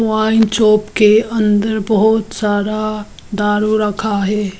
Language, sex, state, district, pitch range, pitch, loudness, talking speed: Hindi, female, Arunachal Pradesh, Lower Dibang Valley, 210-220 Hz, 215 Hz, -14 LUFS, 115 wpm